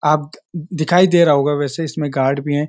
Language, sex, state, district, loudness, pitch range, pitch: Hindi, male, Uttarakhand, Uttarkashi, -16 LUFS, 145-165 Hz, 150 Hz